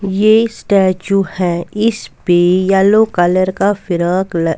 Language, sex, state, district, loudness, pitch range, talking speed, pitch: Hindi, female, Punjab, Kapurthala, -13 LUFS, 175-205 Hz, 130 wpm, 190 Hz